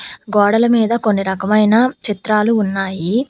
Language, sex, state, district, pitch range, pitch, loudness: Telugu, female, Telangana, Hyderabad, 200-230 Hz, 215 Hz, -15 LUFS